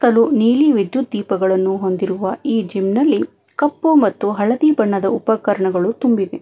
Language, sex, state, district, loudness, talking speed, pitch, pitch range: Kannada, female, Karnataka, Bangalore, -17 LUFS, 120 wpm, 220 Hz, 195-255 Hz